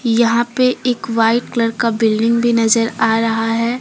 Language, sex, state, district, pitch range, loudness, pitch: Hindi, female, Jharkhand, Deoghar, 225-235 Hz, -15 LUFS, 230 Hz